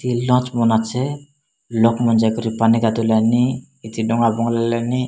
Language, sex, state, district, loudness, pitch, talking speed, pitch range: Odia, male, Odisha, Malkangiri, -18 LUFS, 115 Hz, 130 wpm, 115-125 Hz